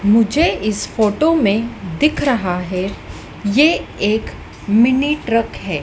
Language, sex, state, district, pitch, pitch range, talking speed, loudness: Hindi, female, Madhya Pradesh, Dhar, 215 Hz, 190-260 Hz, 125 wpm, -17 LUFS